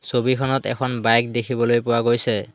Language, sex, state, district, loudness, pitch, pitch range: Assamese, male, Assam, Hailakandi, -20 LUFS, 120 Hz, 120-130 Hz